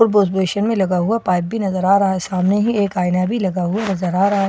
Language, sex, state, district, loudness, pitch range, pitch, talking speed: Hindi, female, Bihar, Katihar, -18 LUFS, 185-205 Hz, 195 Hz, 305 wpm